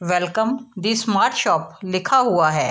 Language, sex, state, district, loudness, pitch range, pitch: Hindi, female, Bihar, East Champaran, -19 LUFS, 180-235 Hz, 200 Hz